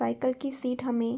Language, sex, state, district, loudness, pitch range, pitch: Hindi, female, Bihar, Begusarai, -30 LUFS, 230-255 Hz, 250 Hz